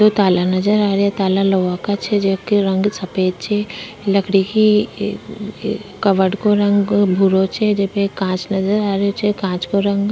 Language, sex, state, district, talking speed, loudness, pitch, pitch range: Rajasthani, female, Rajasthan, Churu, 185 wpm, -17 LUFS, 200 Hz, 190-210 Hz